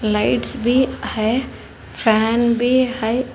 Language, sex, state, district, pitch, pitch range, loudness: Hindi, female, Telangana, Hyderabad, 235 Hz, 220-250 Hz, -18 LUFS